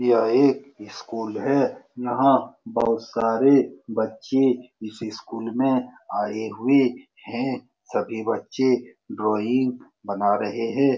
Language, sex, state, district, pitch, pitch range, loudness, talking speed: Hindi, male, Bihar, Saran, 115 Hz, 110-130 Hz, -23 LUFS, 115 wpm